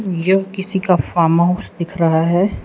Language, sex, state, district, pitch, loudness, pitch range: Hindi, male, Arunachal Pradesh, Lower Dibang Valley, 180 Hz, -16 LUFS, 170-190 Hz